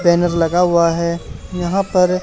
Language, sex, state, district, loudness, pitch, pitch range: Hindi, male, Haryana, Charkhi Dadri, -16 LUFS, 175 Hz, 170-180 Hz